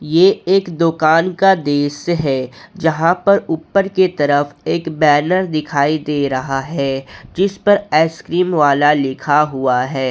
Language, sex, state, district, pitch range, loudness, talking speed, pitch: Hindi, male, Jharkhand, Ranchi, 140-175 Hz, -15 LUFS, 140 wpm, 155 Hz